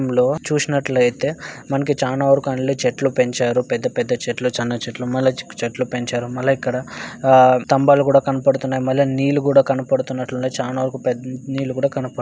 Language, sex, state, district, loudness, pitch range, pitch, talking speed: Telugu, male, Andhra Pradesh, Chittoor, -19 LUFS, 125-140 Hz, 130 Hz, 105 wpm